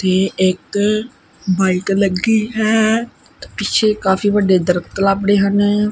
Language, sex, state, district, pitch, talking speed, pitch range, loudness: Punjabi, male, Punjab, Kapurthala, 200 Hz, 110 wpm, 190-215 Hz, -16 LUFS